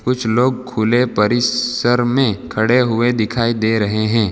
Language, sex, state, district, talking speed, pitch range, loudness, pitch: Hindi, male, Gujarat, Valsad, 155 wpm, 110-125 Hz, -16 LUFS, 120 Hz